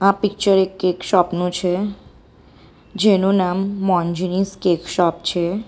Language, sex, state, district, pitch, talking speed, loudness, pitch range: Gujarati, female, Gujarat, Valsad, 185 Hz, 135 wpm, -19 LUFS, 180-195 Hz